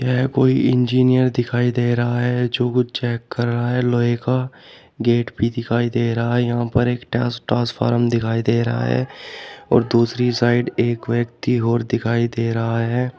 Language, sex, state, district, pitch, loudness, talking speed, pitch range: Hindi, male, Uttar Pradesh, Shamli, 120 Hz, -19 LUFS, 180 wpm, 115-125 Hz